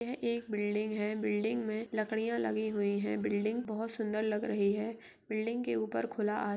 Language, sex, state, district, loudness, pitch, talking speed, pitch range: Hindi, female, Uttar Pradesh, Etah, -34 LUFS, 215 Hz, 210 wpm, 205-225 Hz